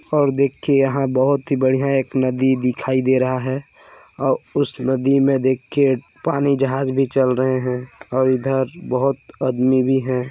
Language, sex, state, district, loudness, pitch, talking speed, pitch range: Hindi, male, Chhattisgarh, Balrampur, -19 LUFS, 130 Hz, 170 wpm, 130-135 Hz